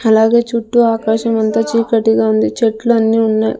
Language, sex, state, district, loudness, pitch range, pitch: Telugu, female, Andhra Pradesh, Sri Satya Sai, -13 LUFS, 220-230 Hz, 225 Hz